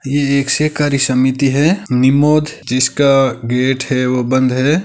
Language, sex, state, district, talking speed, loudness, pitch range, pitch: Hindi, male, Rajasthan, Nagaur, 150 wpm, -14 LUFS, 130-145 Hz, 135 Hz